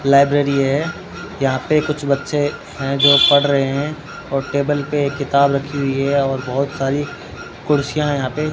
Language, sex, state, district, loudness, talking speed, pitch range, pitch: Hindi, male, Rajasthan, Bikaner, -17 LUFS, 185 wpm, 140-145 Hz, 140 Hz